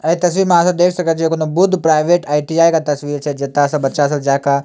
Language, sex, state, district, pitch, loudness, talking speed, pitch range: Maithili, male, Bihar, Samastipur, 155 Hz, -15 LUFS, 285 wpm, 145-170 Hz